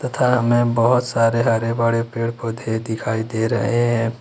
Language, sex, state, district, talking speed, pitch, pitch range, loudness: Hindi, male, Jharkhand, Ranchi, 155 wpm, 115 Hz, 115-120 Hz, -19 LUFS